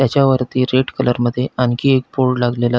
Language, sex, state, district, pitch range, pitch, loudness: Marathi, male, Maharashtra, Pune, 120-130 Hz, 125 Hz, -16 LUFS